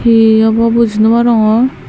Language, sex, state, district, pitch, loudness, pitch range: Chakma, female, Tripura, Dhalai, 230 Hz, -10 LUFS, 220-235 Hz